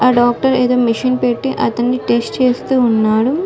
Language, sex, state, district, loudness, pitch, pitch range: Telugu, female, Telangana, Karimnagar, -14 LUFS, 250 Hz, 240-255 Hz